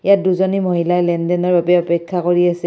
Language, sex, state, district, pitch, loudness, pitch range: Assamese, female, Assam, Kamrup Metropolitan, 175 Hz, -16 LUFS, 175-180 Hz